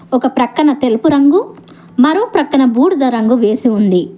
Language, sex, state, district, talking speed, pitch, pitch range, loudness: Telugu, female, Telangana, Hyderabad, 145 wpm, 260 Hz, 240-305 Hz, -12 LUFS